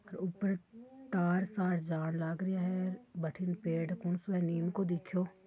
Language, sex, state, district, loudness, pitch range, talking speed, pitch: Marwari, female, Rajasthan, Churu, -36 LUFS, 170-190 Hz, 145 wpm, 180 Hz